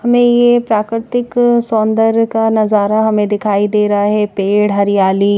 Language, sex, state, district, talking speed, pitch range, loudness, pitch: Hindi, female, Chandigarh, Chandigarh, 145 wpm, 205-230 Hz, -13 LUFS, 215 Hz